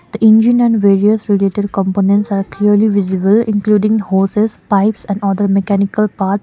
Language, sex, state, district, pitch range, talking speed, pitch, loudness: English, female, Sikkim, Gangtok, 195-215 Hz, 150 wpm, 205 Hz, -13 LUFS